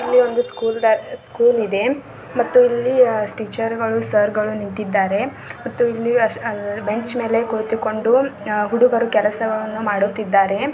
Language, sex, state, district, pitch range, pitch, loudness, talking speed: Kannada, female, Karnataka, Belgaum, 210-245 Hz, 225 Hz, -19 LUFS, 110 wpm